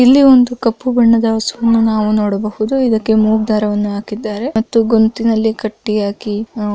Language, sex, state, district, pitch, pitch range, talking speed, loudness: Kannada, female, Karnataka, Mysore, 220 Hz, 215-230 Hz, 150 wpm, -14 LUFS